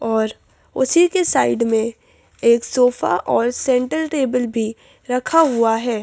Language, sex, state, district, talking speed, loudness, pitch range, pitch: Hindi, female, Madhya Pradesh, Bhopal, 140 wpm, -18 LUFS, 230-270 Hz, 245 Hz